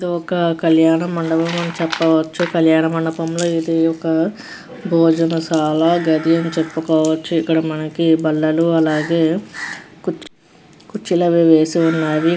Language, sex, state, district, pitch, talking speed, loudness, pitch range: Telugu, female, Andhra Pradesh, Krishna, 165 Hz, 115 wpm, -17 LUFS, 160-170 Hz